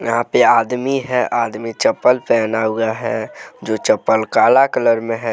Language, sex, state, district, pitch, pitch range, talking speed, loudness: Hindi, male, Jharkhand, Deoghar, 115 Hz, 110-125 Hz, 160 wpm, -16 LUFS